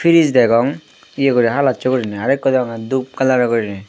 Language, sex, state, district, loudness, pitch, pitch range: Chakma, male, Tripura, Unakoti, -16 LUFS, 130 Hz, 115-135 Hz